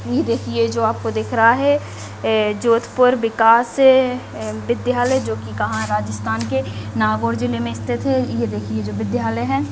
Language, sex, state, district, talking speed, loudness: Hindi, female, Rajasthan, Nagaur, 155 wpm, -18 LUFS